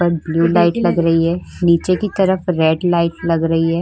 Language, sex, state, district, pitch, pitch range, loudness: Hindi, female, Uttar Pradesh, Budaun, 170 Hz, 165-175 Hz, -16 LUFS